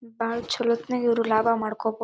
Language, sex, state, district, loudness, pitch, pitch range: Kannada, female, Karnataka, Dharwad, -25 LUFS, 230 Hz, 225-235 Hz